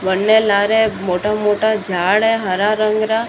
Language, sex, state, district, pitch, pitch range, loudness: Marwari, female, Rajasthan, Churu, 210 Hz, 195-220 Hz, -15 LUFS